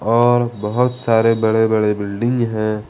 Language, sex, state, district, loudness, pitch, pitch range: Hindi, male, Jharkhand, Ranchi, -17 LUFS, 115 Hz, 110-120 Hz